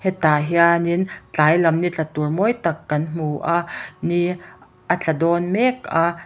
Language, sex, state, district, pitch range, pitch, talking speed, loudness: Mizo, female, Mizoram, Aizawl, 160-175 Hz, 170 Hz, 170 wpm, -20 LUFS